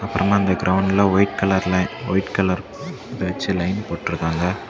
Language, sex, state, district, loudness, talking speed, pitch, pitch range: Tamil, male, Tamil Nadu, Kanyakumari, -20 LUFS, 140 wpm, 95 Hz, 90-100 Hz